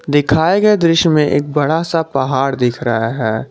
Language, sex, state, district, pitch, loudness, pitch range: Hindi, male, Jharkhand, Garhwa, 145 Hz, -14 LUFS, 130-165 Hz